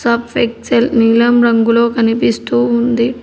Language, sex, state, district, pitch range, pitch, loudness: Telugu, female, Telangana, Hyderabad, 230-235 Hz, 235 Hz, -13 LUFS